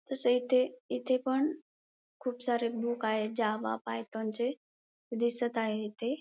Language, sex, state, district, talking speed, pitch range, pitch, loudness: Marathi, female, Maharashtra, Pune, 135 wpm, 220-255 Hz, 240 Hz, -32 LUFS